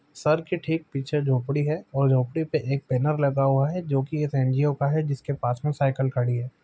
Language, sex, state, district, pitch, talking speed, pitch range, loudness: Maithili, male, Bihar, Supaul, 140 Hz, 235 wpm, 135-150 Hz, -25 LUFS